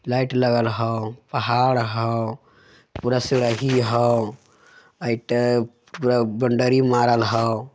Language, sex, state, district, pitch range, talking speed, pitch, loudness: Magahi, male, Bihar, Jamui, 115-125 Hz, 85 wpm, 120 Hz, -21 LUFS